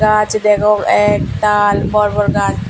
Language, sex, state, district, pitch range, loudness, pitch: Chakma, male, Tripura, Unakoti, 205-210 Hz, -13 LUFS, 210 Hz